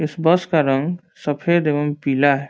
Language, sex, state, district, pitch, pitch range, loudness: Hindi, male, Bihar, Saran, 150 Hz, 145-170 Hz, -19 LUFS